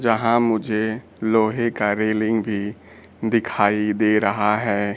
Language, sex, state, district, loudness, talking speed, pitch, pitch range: Hindi, male, Bihar, Kaimur, -20 LUFS, 120 wpm, 110 Hz, 105-115 Hz